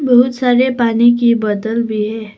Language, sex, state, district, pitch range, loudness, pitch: Hindi, female, Arunachal Pradesh, Papum Pare, 220-245 Hz, -14 LUFS, 235 Hz